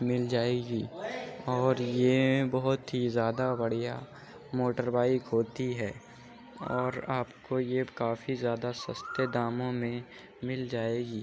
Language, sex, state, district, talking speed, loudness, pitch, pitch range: Hindi, male, Uttar Pradesh, Jyotiba Phule Nagar, 110 wpm, -31 LUFS, 125 Hz, 120-130 Hz